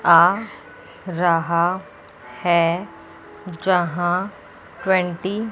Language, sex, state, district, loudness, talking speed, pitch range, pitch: Hindi, female, Chandigarh, Chandigarh, -20 LUFS, 65 wpm, 170-190 Hz, 180 Hz